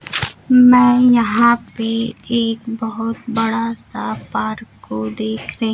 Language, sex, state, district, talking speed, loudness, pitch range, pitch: Hindi, female, Bihar, Kaimur, 115 wpm, -17 LUFS, 170-235 Hz, 225 Hz